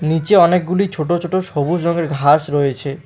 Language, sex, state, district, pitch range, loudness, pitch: Bengali, male, West Bengal, Alipurduar, 145-175 Hz, -16 LUFS, 165 Hz